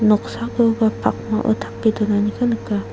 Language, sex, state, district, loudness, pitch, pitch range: Garo, female, Meghalaya, South Garo Hills, -20 LUFS, 220 Hz, 215-230 Hz